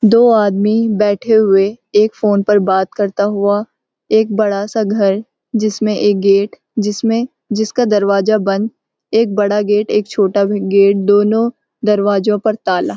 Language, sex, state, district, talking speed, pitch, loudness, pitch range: Hindi, female, Uttarakhand, Uttarkashi, 145 wpm, 210 Hz, -14 LUFS, 200-220 Hz